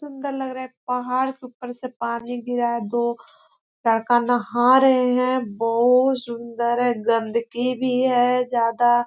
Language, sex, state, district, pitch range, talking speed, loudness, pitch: Hindi, female, Chhattisgarh, Korba, 235-255 Hz, 150 wpm, -21 LUFS, 245 Hz